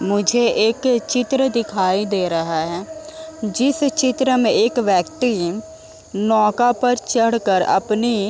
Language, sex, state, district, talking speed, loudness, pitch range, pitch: Hindi, female, Uttar Pradesh, Muzaffarnagar, 130 wpm, -18 LUFS, 205-255 Hz, 230 Hz